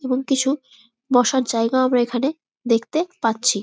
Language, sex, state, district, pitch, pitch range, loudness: Bengali, female, West Bengal, Malda, 255 Hz, 235-270 Hz, -20 LUFS